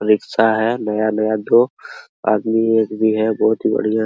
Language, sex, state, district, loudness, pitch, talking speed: Hindi, male, Bihar, Araria, -17 LUFS, 110 Hz, 150 wpm